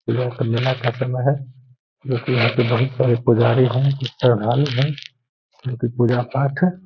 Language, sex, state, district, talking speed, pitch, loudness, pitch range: Hindi, male, Bihar, Gaya, 185 wpm, 125 Hz, -19 LUFS, 120-135 Hz